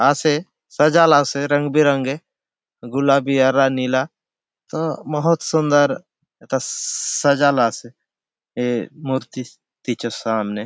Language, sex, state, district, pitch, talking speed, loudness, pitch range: Halbi, male, Chhattisgarh, Bastar, 140 Hz, 115 wpm, -18 LUFS, 130-155 Hz